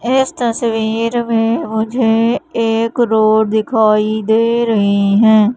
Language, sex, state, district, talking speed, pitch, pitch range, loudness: Hindi, female, Madhya Pradesh, Katni, 110 wpm, 225 Hz, 220-235 Hz, -14 LUFS